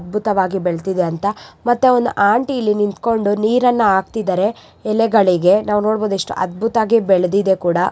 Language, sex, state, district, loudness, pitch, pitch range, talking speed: Kannada, female, Karnataka, Raichur, -16 LUFS, 205 Hz, 190-225 Hz, 120 wpm